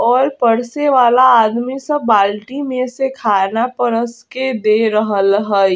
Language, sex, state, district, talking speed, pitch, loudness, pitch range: Bajjika, female, Bihar, Vaishali, 145 wpm, 240 Hz, -15 LUFS, 215-260 Hz